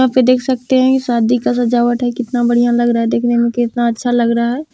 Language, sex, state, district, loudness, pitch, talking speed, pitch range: Maithili, female, Bihar, Madhepura, -14 LUFS, 240 Hz, 280 wpm, 235-250 Hz